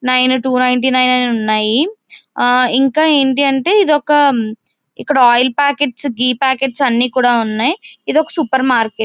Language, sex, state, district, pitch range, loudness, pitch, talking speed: Telugu, female, Andhra Pradesh, Visakhapatnam, 245-285 Hz, -13 LUFS, 260 Hz, 150 wpm